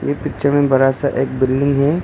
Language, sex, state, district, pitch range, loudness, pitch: Hindi, male, Arunachal Pradesh, Longding, 135-145 Hz, -16 LUFS, 140 Hz